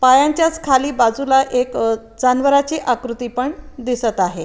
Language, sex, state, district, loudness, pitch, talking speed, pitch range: Marathi, female, Maharashtra, Aurangabad, -17 LUFS, 255 Hz, 120 wpm, 240-275 Hz